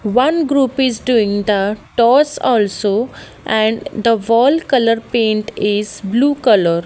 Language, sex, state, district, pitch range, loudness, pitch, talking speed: English, female, Haryana, Jhajjar, 210-255 Hz, -15 LUFS, 230 Hz, 130 wpm